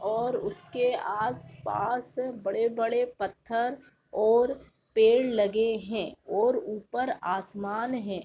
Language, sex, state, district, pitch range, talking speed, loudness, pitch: Hindi, female, Uttar Pradesh, Jalaun, 210-250 Hz, 95 wpm, -28 LUFS, 230 Hz